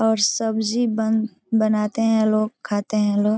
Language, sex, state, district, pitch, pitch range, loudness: Hindi, female, Bihar, East Champaran, 220 Hz, 210-220 Hz, -21 LUFS